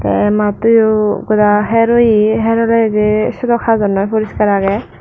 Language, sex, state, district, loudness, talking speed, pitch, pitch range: Chakma, female, Tripura, Dhalai, -12 LUFS, 155 wpm, 215 Hz, 210-230 Hz